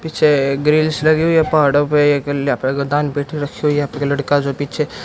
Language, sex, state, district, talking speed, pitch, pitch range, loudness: Hindi, male, Haryana, Jhajjar, 225 wpm, 145 Hz, 140-155 Hz, -16 LUFS